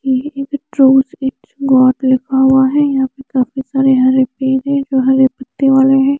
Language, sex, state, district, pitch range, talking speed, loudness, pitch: Hindi, female, Chandigarh, Chandigarh, 265-275 Hz, 175 wpm, -13 LUFS, 265 Hz